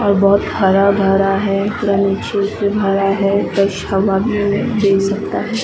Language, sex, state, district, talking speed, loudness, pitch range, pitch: Hindi, female, Maharashtra, Mumbai Suburban, 170 wpm, -15 LUFS, 195-200 Hz, 200 Hz